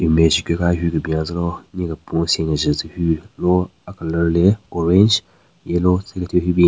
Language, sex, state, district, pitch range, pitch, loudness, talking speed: Rengma, male, Nagaland, Kohima, 80-90 Hz, 85 Hz, -19 LUFS, 190 wpm